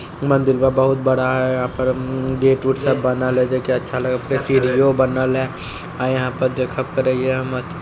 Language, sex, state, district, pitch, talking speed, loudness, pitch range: Hindi, male, Bihar, Lakhisarai, 130 Hz, 215 wpm, -18 LUFS, 130-135 Hz